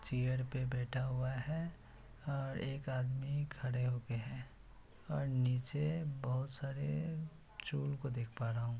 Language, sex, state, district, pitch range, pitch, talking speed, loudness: Hindi, male, Bihar, Kishanganj, 125-145 Hz, 130 Hz, 145 wpm, -40 LUFS